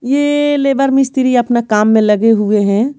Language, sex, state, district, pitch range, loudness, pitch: Hindi, female, Bihar, Patna, 215-275 Hz, -12 LUFS, 245 Hz